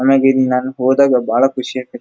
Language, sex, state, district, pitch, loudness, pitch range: Kannada, male, Karnataka, Dharwad, 130 Hz, -14 LUFS, 125-135 Hz